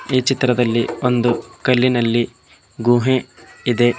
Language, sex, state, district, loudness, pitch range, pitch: Kannada, male, Karnataka, Bidar, -18 LUFS, 120-125 Hz, 120 Hz